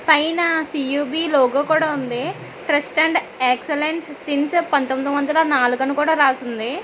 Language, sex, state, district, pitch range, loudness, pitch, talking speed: Telugu, female, Telangana, Hyderabad, 270-315 Hz, -19 LUFS, 290 Hz, 150 wpm